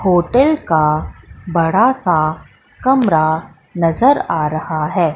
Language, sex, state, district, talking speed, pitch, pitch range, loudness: Hindi, female, Madhya Pradesh, Katni, 105 wpm, 165 Hz, 155-230 Hz, -15 LUFS